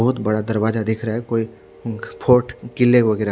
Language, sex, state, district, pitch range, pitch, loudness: Hindi, male, Odisha, Khordha, 110-120 Hz, 115 Hz, -19 LUFS